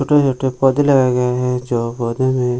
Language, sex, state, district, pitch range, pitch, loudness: Hindi, male, Bihar, Jamui, 125-135 Hz, 125 Hz, -16 LUFS